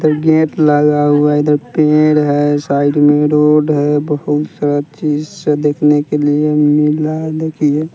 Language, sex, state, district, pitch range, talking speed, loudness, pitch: Hindi, male, Bihar, West Champaran, 145-155 Hz, 165 wpm, -13 LUFS, 150 Hz